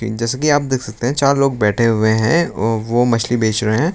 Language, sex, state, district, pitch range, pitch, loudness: Hindi, male, Uttar Pradesh, Lucknow, 110-135 Hz, 115 Hz, -16 LUFS